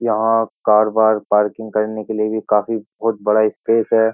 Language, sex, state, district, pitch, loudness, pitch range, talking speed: Hindi, male, Uttar Pradesh, Jyotiba Phule Nagar, 110 Hz, -17 LUFS, 105-115 Hz, 190 wpm